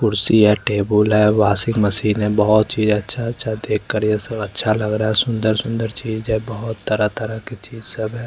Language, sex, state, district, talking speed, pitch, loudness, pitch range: Hindi, male, Chandigarh, Chandigarh, 210 wpm, 110 Hz, -18 LUFS, 105-115 Hz